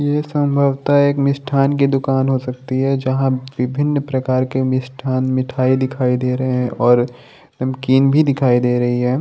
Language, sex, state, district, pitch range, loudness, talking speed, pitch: Hindi, male, Maharashtra, Chandrapur, 130-140 Hz, -17 LUFS, 170 wpm, 130 Hz